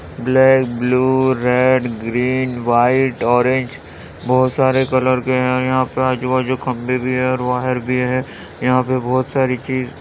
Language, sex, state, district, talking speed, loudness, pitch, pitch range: Hindi, male, Uttar Pradesh, Jyotiba Phule Nagar, 170 wpm, -17 LUFS, 130 Hz, 125-130 Hz